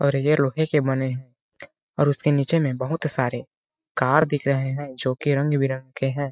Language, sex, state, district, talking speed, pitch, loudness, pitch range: Hindi, male, Chhattisgarh, Balrampur, 190 wpm, 140 Hz, -23 LUFS, 130-150 Hz